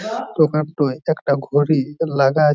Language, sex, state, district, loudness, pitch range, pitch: Bengali, male, West Bengal, Jhargram, -19 LUFS, 140-155 Hz, 150 Hz